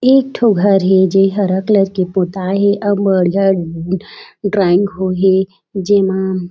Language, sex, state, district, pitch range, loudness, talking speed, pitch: Chhattisgarhi, female, Chhattisgarh, Raigarh, 185-200 Hz, -14 LUFS, 175 wpm, 195 Hz